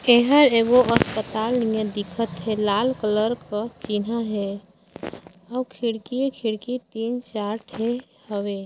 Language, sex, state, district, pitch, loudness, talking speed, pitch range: Chhattisgarhi, female, Chhattisgarh, Sarguja, 225 Hz, -23 LUFS, 125 wpm, 210-245 Hz